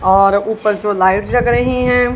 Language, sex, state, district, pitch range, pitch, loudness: Hindi, female, Punjab, Kapurthala, 200-245 Hz, 215 Hz, -14 LUFS